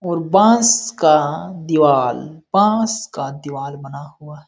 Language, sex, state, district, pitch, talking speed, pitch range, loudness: Hindi, male, Bihar, Jamui, 155 Hz, 135 wpm, 145-200 Hz, -16 LUFS